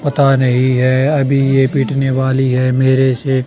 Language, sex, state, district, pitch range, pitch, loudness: Hindi, male, Haryana, Charkhi Dadri, 130-135 Hz, 130 Hz, -13 LUFS